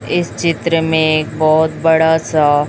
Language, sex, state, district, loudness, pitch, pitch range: Hindi, female, Chhattisgarh, Raipur, -14 LUFS, 160 Hz, 155-165 Hz